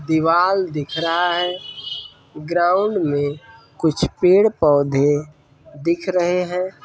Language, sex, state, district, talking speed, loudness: Hindi, male, Uttar Pradesh, Ghazipur, 105 wpm, -19 LUFS